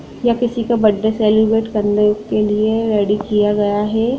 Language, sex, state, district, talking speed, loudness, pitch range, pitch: Hindi, female, Bihar, Sitamarhi, 170 wpm, -16 LUFS, 210-225 Hz, 215 Hz